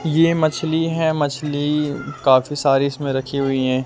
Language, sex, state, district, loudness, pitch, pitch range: Hindi, male, Delhi, New Delhi, -19 LUFS, 145 Hz, 135-160 Hz